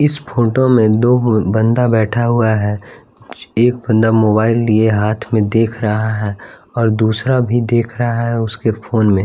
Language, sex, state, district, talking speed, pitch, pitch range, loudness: Hindi, male, Bihar, West Champaran, 170 wpm, 110 Hz, 110-120 Hz, -14 LUFS